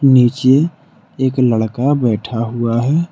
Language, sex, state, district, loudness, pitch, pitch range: Hindi, male, Jharkhand, Deoghar, -15 LUFS, 130 Hz, 115-140 Hz